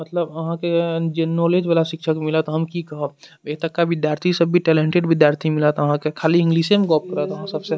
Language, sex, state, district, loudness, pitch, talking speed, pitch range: Maithili, male, Bihar, Madhepura, -19 LUFS, 165 Hz, 215 wpm, 155-170 Hz